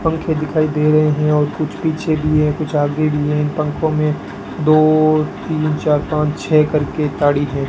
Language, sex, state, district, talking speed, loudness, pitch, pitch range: Hindi, male, Rajasthan, Bikaner, 185 wpm, -16 LUFS, 155 Hz, 150-155 Hz